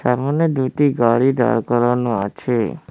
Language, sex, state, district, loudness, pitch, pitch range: Bengali, male, West Bengal, Cooch Behar, -18 LUFS, 125 Hz, 115-135 Hz